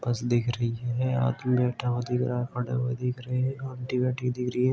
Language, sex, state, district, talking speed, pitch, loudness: Hindi, male, Uttar Pradesh, Jalaun, 280 wpm, 125 Hz, -28 LUFS